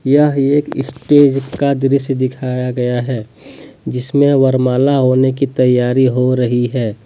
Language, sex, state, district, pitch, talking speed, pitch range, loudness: Hindi, male, Jharkhand, Deoghar, 130 Hz, 135 wpm, 125-140 Hz, -14 LUFS